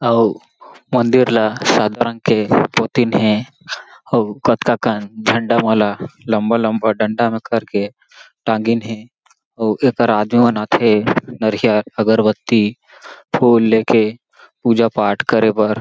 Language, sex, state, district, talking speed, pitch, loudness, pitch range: Chhattisgarhi, male, Chhattisgarh, Jashpur, 130 wpm, 110 Hz, -16 LUFS, 110-115 Hz